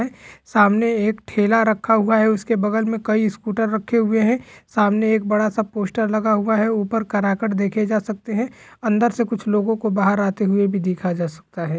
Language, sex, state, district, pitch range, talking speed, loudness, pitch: Hindi, male, Chhattisgarh, Sukma, 205-225 Hz, 210 wpm, -20 LUFS, 215 Hz